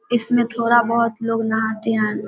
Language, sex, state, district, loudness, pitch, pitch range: Hindi, female, Bihar, Vaishali, -19 LUFS, 230 Hz, 225-240 Hz